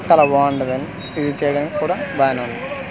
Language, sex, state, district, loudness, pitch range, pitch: Telugu, male, Andhra Pradesh, Manyam, -19 LUFS, 135-150 Hz, 140 Hz